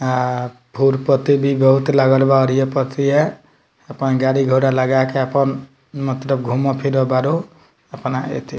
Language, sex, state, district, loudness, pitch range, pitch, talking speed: Bhojpuri, male, Bihar, Muzaffarpur, -17 LUFS, 130-140 Hz, 135 Hz, 160 wpm